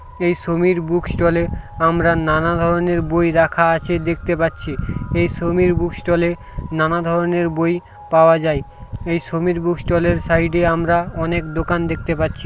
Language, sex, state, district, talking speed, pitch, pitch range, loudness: Bengali, male, West Bengal, Paschim Medinipur, 160 wpm, 170 Hz, 165-175 Hz, -18 LUFS